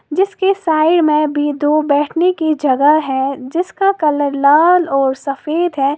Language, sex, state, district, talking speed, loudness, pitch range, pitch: Hindi, female, Uttar Pradesh, Lalitpur, 150 wpm, -14 LUFS, 285-340 Hz, 300 Hz